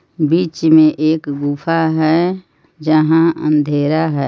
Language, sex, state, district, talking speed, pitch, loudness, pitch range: Hindi, female, Jharkhand, Palamu, 110 wpm, 155 Hz, -14 LUFS, 150-165 Hz